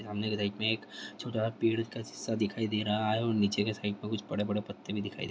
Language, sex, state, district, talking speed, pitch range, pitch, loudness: Hindi, male, Bihar, Vaishali, 280 wpm, 105-110 Hz, 105 Hz, -33 LUFS